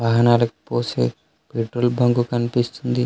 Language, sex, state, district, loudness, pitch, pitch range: Telugu, male, Telangana, Adilabad, -21 LUFS, 120 Hz, 115-120 Hz